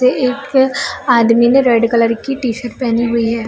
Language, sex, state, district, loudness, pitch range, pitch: Hindi, female, Chhattisgarh, Bilaspur, -14 LUFS, 230-260 Hz, 240 Hz